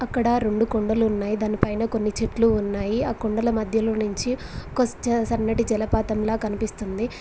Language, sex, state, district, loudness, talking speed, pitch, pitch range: Telugu, female, Telangana, Mahabubabad, -24 LUFS, 140 wpm, 220 Hz, 215-230 Hz